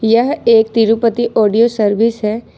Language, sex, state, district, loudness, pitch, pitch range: Hindi, female, Jharkhand, Ranchi, -13 LUFS, 225 Hz, 220-235 Hz